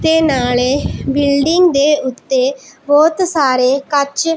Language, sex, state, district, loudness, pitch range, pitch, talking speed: Punjabi, female, Punjab, Pathankot, -14 LUFS, 265-315 Hz, 280 Hz, 110 wpm